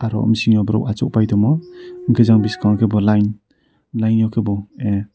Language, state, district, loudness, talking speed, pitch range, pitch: Kokborok, Tripura, Dhalai, -17 LUFS, 175 wpm, 105-115 Hz, 110 Hz